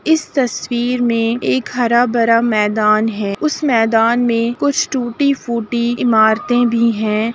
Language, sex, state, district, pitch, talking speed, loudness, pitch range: Hindi, female, Uttar Pradesh, Jalaun, 235 Hz, 140 wpm, -15 LUFS, 225-245 Hz